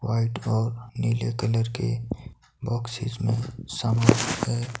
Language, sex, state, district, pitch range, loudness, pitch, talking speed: Hindi, male, Himachal Pradesh, Shimla, 115-120 Hz, -26 LUFS, 115 Hz, 100 wpm